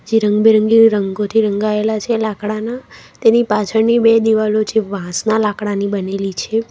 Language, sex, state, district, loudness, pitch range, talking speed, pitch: Gujarati, female, Gujarat, Valsad, -15 LUFS, 210-225 Hz, 135 wpm, 215 Hz